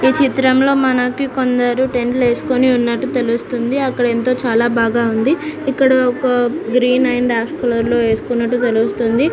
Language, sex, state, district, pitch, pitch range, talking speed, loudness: Telugu, female, Andhra Pradesh, Anantapur, 250 Hz, 235-260 Hz, 140 wpm, -15 LUFS